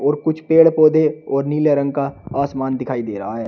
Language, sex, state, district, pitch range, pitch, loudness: Hindi, male, Uttar Pradesh, Shamli, 135-155 Hz, 140 Hz, -17 LUFS